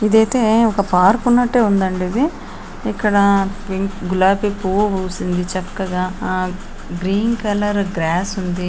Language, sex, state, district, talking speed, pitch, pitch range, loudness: Telugu, female, Andhra Pradesh, Anantapur, 110 wpm, 195 Hz, 185-210 Hz, -17 LUFS